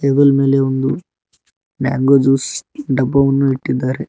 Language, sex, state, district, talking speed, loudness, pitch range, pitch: Kannada, male, Karnataka, Koppal, 105 wpm, -15 LUFS, 130-140 Hz, 135 Hz